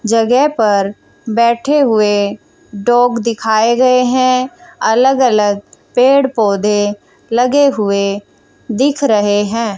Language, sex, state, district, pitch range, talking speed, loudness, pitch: Hindi, female, Haryana, Jhajjar, 210-255 Hz, 105 wpm, -13 LUFS, 230 Hz